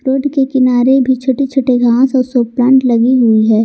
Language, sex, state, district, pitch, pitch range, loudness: Hindi, female, Jharkhand, Garhwa, 255 Hz, 245-265 Hz, -11 LUFS